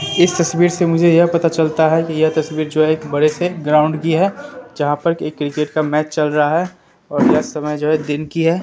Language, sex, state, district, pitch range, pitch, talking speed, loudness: Hindi, male, Bihar, Katihar, 150-170 Hz, 160 Hz, 255 wpm, -16 LUFS